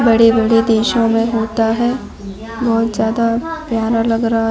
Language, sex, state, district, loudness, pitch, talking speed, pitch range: Hindi, female, Chhattisgarh, Bilaspur, -15 LUFS, 225 Hz, 145 wpm, 225-230 Hz